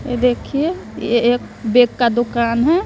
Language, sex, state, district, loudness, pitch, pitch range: Hindi, female, Bihar, West Champaran, -17 LUFS, 245 Hz, 235-255 Hz